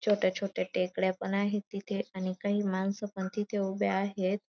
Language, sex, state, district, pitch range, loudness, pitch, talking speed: Marathi, female, Maharashtra, Dhule, 190-205 Hz, -32 LUFS, 200 Hz, 175 wpm